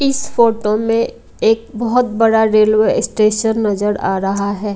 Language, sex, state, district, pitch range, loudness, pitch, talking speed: Hindi, female, Punjab, Kapurthala, 210-230 Hz, -15 LUFS, 220 Hz, 150 wpm